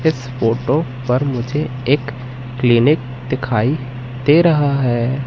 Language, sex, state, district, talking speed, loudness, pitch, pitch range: Hindi, male, Madhya Pradesh, Katni, 115 wpm, -17 LUFS, 130 Hz, 125-145 Hz